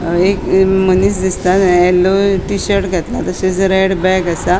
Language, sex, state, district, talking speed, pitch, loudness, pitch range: Konkani, female, Goa, North and South Goa, 130 wpm, 190 Hz, -13 LUFS, 180-190 Hz